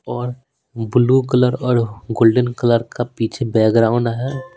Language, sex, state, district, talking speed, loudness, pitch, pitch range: Hindi, male, Bihar, Patna, 130 wpm, -17 LUFS, 120 Hz, 115-125 Hz